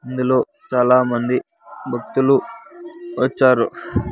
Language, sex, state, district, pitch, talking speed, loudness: Telugu, male, Andhra Pradesh, Sri Satya Sai, 135 Hz, 60 wpm, -18 LUFS